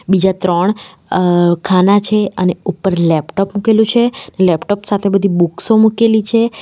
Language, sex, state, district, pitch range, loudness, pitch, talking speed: Gujarati, female, Gujarat, Valsad, 180-215 Hz, -13 LUFS, 195 Hz, 145 wpm